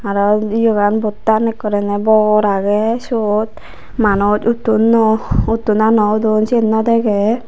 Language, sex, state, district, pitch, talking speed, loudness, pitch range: Chakma, female, Tripura, Unakoti, 215 Hz, 130 wpm, -14 LUFS, 210-225 Hz